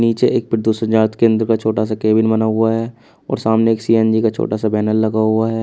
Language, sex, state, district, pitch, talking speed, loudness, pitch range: Hindi, male, Uttar Pradesh, Shamli, 110 Hz, 245 wpm, -16 LUFS, 110-115 Hz